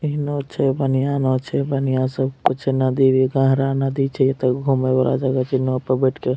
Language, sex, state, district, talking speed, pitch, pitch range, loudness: Maithili, male, Bihar, Madhepura, 235 wpm, 135 Hz, 130-135 Hz, -19 LUFS